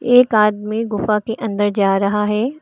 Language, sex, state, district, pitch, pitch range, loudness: Hindi, female, Uttar Pradesh, Lucknow, 210 Hz, 205-225 Hz, -17 LUFS